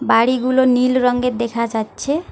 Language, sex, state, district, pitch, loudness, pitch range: Bengali, female, West Bengal, Alipurduar, 250 Hz, -17 LUFS, 235-255 Hz